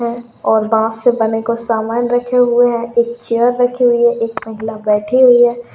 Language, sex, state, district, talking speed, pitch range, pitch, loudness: Kumaoni, female, Uttarakhand, Tehri Garhwal, 210 wpm, 225-245 Hz, 235 Hz, -14 LUFS